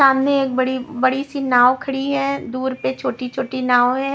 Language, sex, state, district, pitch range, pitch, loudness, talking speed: Hindi, female, Maharashtra, Washim, 255-275 Hz, 260 Hz, -19 LUFS, 175 wpm